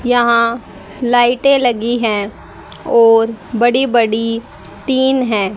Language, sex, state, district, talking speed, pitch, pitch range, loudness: Hindi, female, Haryana, Rohtak, 95 wpm, 235 Hz, 225-245 Hz, -14 LUFS